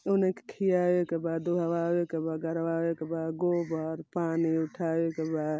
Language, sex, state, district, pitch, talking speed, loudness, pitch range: Hindi, male, Uttar Pradesh, Ghazipur, 165 Hz, 105 wpm, -30 LUFS, 160-175 Hz